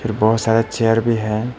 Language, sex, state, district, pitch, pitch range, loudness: Hindi, male, Arunachal Pradesh, Papum Pare, 115 Hz, 110-115 Hz, -17 LUFS